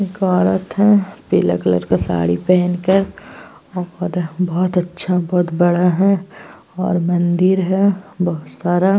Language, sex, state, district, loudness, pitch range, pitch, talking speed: Hindi, female, Uttar Pradesh, Jyotiba Phule Nagar, -17 LUFS, 175-190 Hz, 180 Hz, 140 wpm